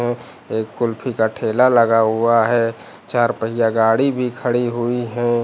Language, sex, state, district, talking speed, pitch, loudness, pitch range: Hindi, male, Uttar Pradesh, Lucknow, 165 wpm, 120 Hz, -18 LUFS, 115-120 Hz